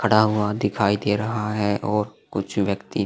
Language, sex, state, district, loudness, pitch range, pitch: Hindi, male, Uttar Pradesh, Jalaun, -23 LUFS, 100-105 Hz, 105 Hz